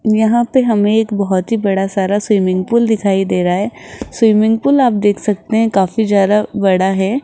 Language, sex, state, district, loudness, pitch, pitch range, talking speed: Hindi, female, Rajasthan, Jaipur, -14 LUFS, 210 Hz, 195-225 Hz, 200 wpm